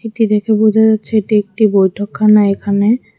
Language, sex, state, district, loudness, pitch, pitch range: Bengali, female, Tripura, West Tripura, -13 LUFS, 215 Hz, 205-220 Hz